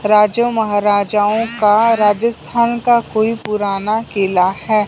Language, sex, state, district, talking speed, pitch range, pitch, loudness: Hindi, male, Punjab, Fazilka, 110 wpm, 205-230 Hz, 215 Hz, -15 LUFS